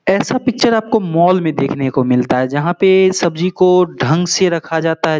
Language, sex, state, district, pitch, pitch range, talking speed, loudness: Hindi, male, Bihar, Samastipur, 175 Hz, 155-190 Hz, 205 wpm, -14 LUFS